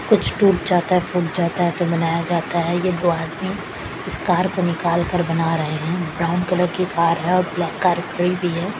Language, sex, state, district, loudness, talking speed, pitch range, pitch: Hindi, female, Chhattisgarh, Raipur, -20 LUFS, 225 wpm, 170-180 Hz, 175 Hz